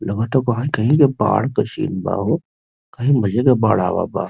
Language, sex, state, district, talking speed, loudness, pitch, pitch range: Bhojpuri, male, Uttar Pradesh, Varanasi, 210 wpm, -18 LUFS, 110 Hz, 100-130 Hz